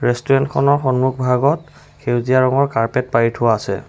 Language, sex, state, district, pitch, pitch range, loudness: Assamese, male, Assam, Sonitpur, 130 Hz, 120-140 Hz, -17 LUFS